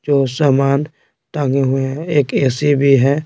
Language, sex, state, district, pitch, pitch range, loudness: Hindi, male, Bihar, Patna, 140 Hz, 135-145 Hz, -15 LUFS